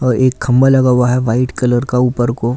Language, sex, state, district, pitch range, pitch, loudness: Hindi, male, Delhi, New Delhi, 120-130 Hz, 125 Hz, -13 LUFS